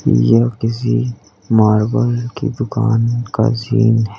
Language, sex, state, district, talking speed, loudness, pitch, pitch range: Hindi, male, Uttar Pradesh, Lalitpur, 115 wpm, -16 LUFS, 115 Hz, 110-120 Hz